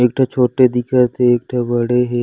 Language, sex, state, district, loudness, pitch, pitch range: Chhattisgarhi, male, Chhattisgarh, Raigarh, -15 LUFS, 125 Hz, 120-125 Hz